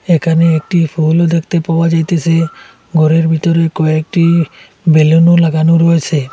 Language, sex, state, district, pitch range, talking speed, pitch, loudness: Bengali, male, Assam, Hailakandi, 160-170 Hz, 115 wpm, 165 Hz, -11 LUFS